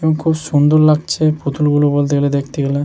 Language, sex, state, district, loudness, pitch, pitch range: Bengali, male, West Bengal, Jhargram, -15 LUFS, 145 Hz, 145-155 Hz